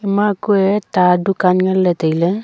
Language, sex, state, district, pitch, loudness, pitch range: Wancho, female, Arunachal Pradesh, Longding, 190 Hz, -15 LUFS, 180-200 Hz